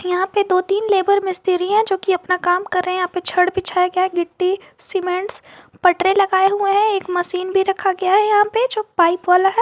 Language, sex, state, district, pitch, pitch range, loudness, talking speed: Hindi, female, Jharkhand, Garhwa, 375 Hz, 360-395 Hz, -18 LUFS, 230 wpm